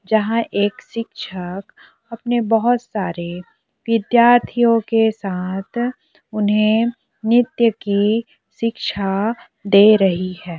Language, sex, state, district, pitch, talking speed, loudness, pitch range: Hindi, female, Chhattisgarh, Korba, 220 Hz, 90 wpm, -18 LUFS, 200-230 Hz